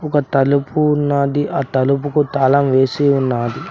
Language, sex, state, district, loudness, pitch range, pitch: Telugu, male, Telangana, Mahabubabad, -16 LUFS, 135-145 Hz, 140 Hz